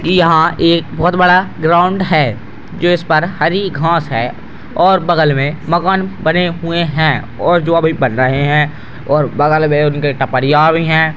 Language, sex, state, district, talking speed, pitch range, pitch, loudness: Hindi, male, Bihar, Purnia, 175 wpm, 145-175 Hz, 160 Hz, -13 LUFS